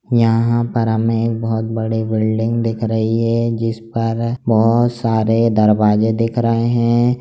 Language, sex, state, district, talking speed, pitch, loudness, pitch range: Hindi, male, Bihar, Jamui, 150 wpm, 115 Hz, -16 LUFS, 110-115 Hz